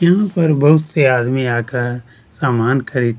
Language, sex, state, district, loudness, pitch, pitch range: Hindi, male, Chhattisgarh, Kabirdham, -15 LUFS, 125 Hz, 120-150 Hz